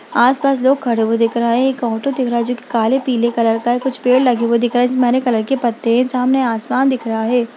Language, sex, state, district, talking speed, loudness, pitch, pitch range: Hindi, female, Bihar, Bhagalpur, 295 wpm, -16 LUFS, 245 Hz, 235-260 Hz